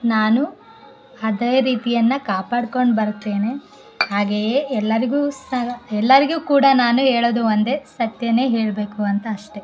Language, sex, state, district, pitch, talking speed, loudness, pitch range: Kannada, female, Karnataka, Bellary, 235 Hz, 105 wpm, -19 LUFS, 215-260 Hz